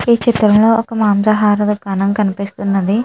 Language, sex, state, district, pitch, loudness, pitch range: Telugu, female, Andhra Pradesh, Chittoor, 210 Hz, -14 LUFS, 200-225 Hz